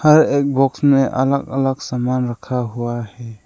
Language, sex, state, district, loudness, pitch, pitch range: Hindi, male, Arunachal Pradesh, Lower Dibang Valley, -18 LUFS, 130 Hz, 120-140 Hz